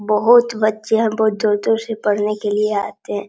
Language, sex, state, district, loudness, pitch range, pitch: Hindi, male, Bihar, Supaul, -17 LUFS, 210-220 Hz, 215 Hz